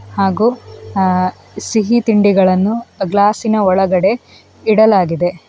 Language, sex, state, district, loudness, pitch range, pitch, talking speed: Kannada, female, Karnataka, Dakshina Kannada, -14 LUFS, 185-220 Hz, 200 Hz, 100 wpm